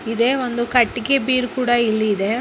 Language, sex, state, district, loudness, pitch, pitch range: Kannada, female, Karnataka, Bijapur, -18 LUFS, 240 Hz, 225-255 Hz